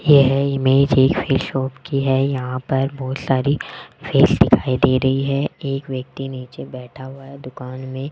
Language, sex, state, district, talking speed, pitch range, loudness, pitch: Hindi, male, Rajasthan, Jaipur, 175 wpm, 130-140 Hz, -19 LUFS, 135 Hz